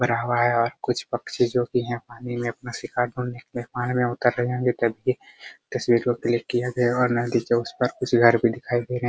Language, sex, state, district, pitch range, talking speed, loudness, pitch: Hindi, male, Bihar, Araria, 120-125 Hz, 205 wpm, -24 LUFS, 120 Hz